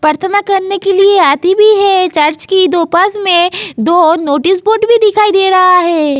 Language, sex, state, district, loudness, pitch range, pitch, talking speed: Hindi, female, Uttar Pradesh, Jyotiba Phule Nagar, -9 LUFS, 340-395 Hz, 370 Hz, 205 wpm